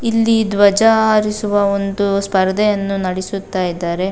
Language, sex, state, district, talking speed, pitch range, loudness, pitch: Kannada, female, Karnataka, Dakshina Kannada, 100 wpm, 190-210 Hz, -15 LUFS, 200 Hz